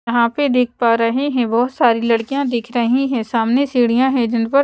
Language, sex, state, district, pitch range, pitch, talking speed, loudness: Hindi, female, Odisha, Sambalpur, 230-265 Hz, 240 Hz, 220 wpm, -17 LUFS